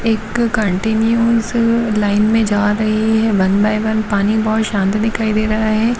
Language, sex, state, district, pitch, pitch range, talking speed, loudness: Hindi, female, Jharkhand, Jamtara, 220 Hz, 210-225 Hz, 170 wpm, -15 LUFS